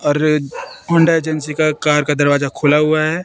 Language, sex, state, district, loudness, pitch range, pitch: Hindi, female, Madhya Pradesh, Katni, -15 LUFS, 150-155 Hz, 155 Hz